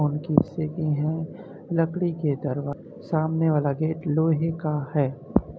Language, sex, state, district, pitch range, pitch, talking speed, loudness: Hindi, male, Uttar Pradesh, Muzaffarnagar, 150-165 Hz, 155 Hz, 105 wpm, -25 LUFS